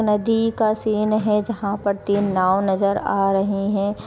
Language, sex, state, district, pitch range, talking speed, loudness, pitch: Hindi, female, Uttar Pradesh, Varanasi, 200-215 Hz, 175 wpm, -20 LUFS, 205 Hz